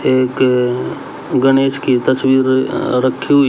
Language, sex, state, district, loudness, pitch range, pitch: Hindi, male, Haryana, Rohtak, -15 LUFS, 125-135 Hz, 130 Hz